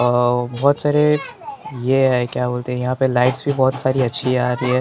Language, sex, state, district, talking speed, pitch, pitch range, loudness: Hindi, male, Maharashtra, Mumbai Suburban, 250 wpm, 130 Hz, 125-135 Hz, -18 LUFS